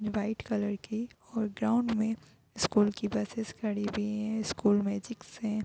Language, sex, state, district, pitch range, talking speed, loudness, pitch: Hindi, female, Bihar, Gopalganj, 205-220 Hz, 170 wpm, -32 LUFS, 215 Hz